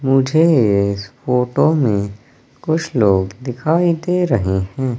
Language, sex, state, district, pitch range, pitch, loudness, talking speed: Hindi, male, Madhya Pradesh, Katni, 100-155 Hz, 130 Hz, -17 LUFS, 120 wpm